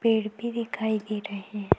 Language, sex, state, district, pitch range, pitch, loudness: Hindi, female, Chhattisgarh, Kabirdham, 205-225 Hz, 215 Hz, -29 LUFS